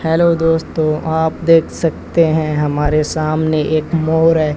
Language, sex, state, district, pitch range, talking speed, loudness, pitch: Hindi, male, Rajasthan, Bikaner, 155-165 Hz, 145 wpm, -15 LUFS, 160 Hz